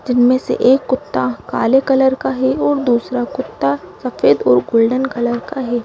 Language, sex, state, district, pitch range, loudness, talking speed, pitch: Hindi, female, Madhya Pradesh, Bhopal, 185-260 Hz, -16 LUFS, 175 wpm, 245 Hz